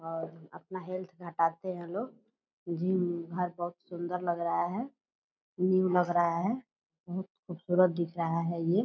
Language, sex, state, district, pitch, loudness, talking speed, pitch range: Hindi, female, Bihar, Purnia, 175 Hz, -32 LUFS, 165 wpm, 170-185 Hz